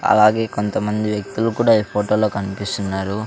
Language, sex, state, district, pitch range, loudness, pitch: Telugu, male, Andhra Pradesh, Sri Satya Sai, 100-110 Hz, -19 LUFS, 105 Hz